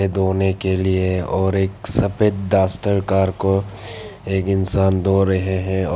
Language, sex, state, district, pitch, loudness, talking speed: Hindi, male, Arunachal Pradesh, Papum Pare, 95 Hz, -19 LUFS, 150 wpm